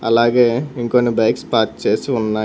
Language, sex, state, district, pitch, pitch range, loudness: Telugu, male, Telangana, Hyderabad, 120 Hz, 115-125 Hz, -17 LUFS